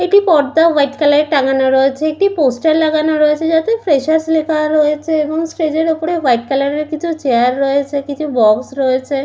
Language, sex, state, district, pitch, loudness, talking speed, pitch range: Bengali, female, West Bengal, Malda, 300 Hz, -14 LUFS, 175 wpm, 275-320 Hz